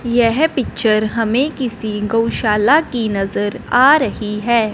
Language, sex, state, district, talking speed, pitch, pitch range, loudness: Hindi, male, Punjab, Fazilka, 125 wpm, 230 Hz, 215-250 Hz, -16 LUFS